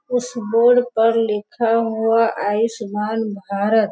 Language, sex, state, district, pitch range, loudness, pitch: Hindi, female, Bihar, Sitamarhi, 210-230 Hz, -19 LUFS, 225 Hz